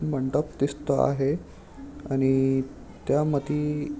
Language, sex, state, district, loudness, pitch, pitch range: Marathi, male, Maharashtra, Aurangabad, -26 LUFS, 145 Hz, 135-150 Hz